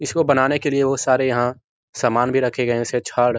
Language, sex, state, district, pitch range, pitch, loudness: Hindi, male, Bihar, Araria, 120-135 Hz, 125 Hz, -19 LUFS